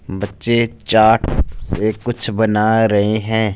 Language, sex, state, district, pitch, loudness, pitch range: Hindi, male, Punjab, Fazilka, 110 Hz, -16 LUFS, 100-110 Hz